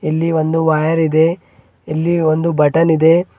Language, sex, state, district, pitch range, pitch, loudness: Kannada, male, Karnataka, Bidar, 155-165 Hz, 160 Hz, -15 LUFS